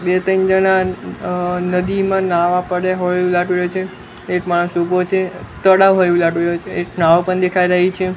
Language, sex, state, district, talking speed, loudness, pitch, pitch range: Gujarati, male, Gujarat, Gandhinagar, 205 wpm, -16 LUFS, 180 Hz, 175-185 Hz